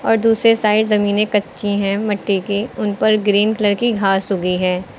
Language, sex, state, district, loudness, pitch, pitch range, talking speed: Hindi, female, Uttar Pradesh, Lucknow, -16 LUFS, 205 Hz, 200-215 Hz, 180 wpm